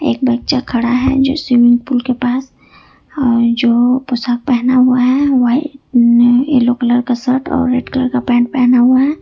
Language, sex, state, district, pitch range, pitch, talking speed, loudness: Hindi, female, Jharkhand, Ranchi, 245-260 Hz, 250 Hz, 180 wpm, -13 LUFS